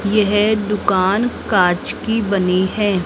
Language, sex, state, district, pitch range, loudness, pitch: Hindi, female, Rajasthan, Jaipur, 190-210 Hz, -17 LUFS, 205 Hz